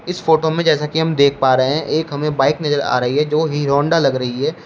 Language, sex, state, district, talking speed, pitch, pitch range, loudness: Hindi, male, Uttar Pradesh, Shamli, 295 wpm, 150 Hz, 135-160 Hz, -16 LUFS